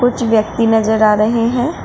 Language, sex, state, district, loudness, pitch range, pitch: Hindi, female, Uttar Pradesh, Shamli, -14 LUFS, 220-245 Hz, 225 Hz